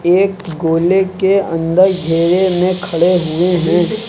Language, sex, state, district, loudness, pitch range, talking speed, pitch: Hindi, male, Uttar Pradesh, Lucknow, -14 LUFS, 170-190 Hz, 130 wpm, 180 Hz